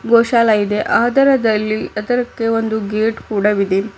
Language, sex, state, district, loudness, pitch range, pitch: Kannada, female, Karnataka, Bidar, -16 LUFS, 210-235 Hz, 220 Hz